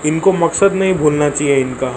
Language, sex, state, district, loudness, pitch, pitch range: Hindi, male, Maharashtra, Mumbai Suburban, -14 LUFS, 150 Hz, 140-185 Hz